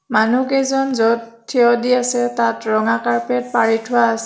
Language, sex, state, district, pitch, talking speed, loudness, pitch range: Assamese, female, Assam, Kamrup Metropolitan, 230 Hz, 155 wpm, -17 LUFS, 225-245 Hz